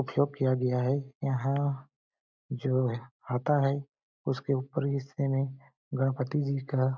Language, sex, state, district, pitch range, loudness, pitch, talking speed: Hindi, male, Chhattisgarh, Balrampur, 130-140 Hz, -30 LUFS, 135 Hz, 140 wpm